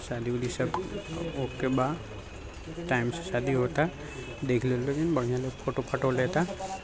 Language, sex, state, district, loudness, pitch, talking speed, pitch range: Bhojpuri, male, Bihar, Gopalganj, -30 LUFS, 130 Hz, 160 wpm, 125-150 Hz